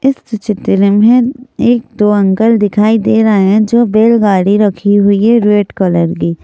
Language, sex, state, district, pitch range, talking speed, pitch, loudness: Hindi, female, Madhya Pradesh, Bhopal, 200-230 Hz, 170 wpm, 210 Hz, -10 LUFS